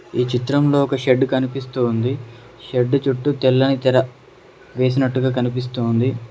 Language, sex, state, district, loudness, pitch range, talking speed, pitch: Telugu, male, Telangana, Mahabubabad, -19 LUFS, 125-135 Hz, 105 wpm, 130 Hz